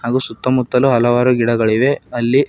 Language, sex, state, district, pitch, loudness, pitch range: Kannada, male, Karnataka, Bidar, 125 Hz, -15 LUFS, 120-130 Hz